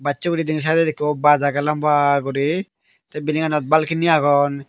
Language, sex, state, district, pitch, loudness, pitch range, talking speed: Chakma, male, Tripura, Dhalai, 150 Hz, -19 LUFS, 145-160 Hz, 165 wpm